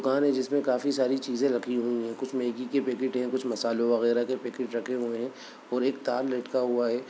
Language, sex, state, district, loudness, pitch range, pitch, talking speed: Hindi, male, Bihar, Bhagalpur, -28 LUFS, 120-130 Hz, 125 Hz, 235 wpm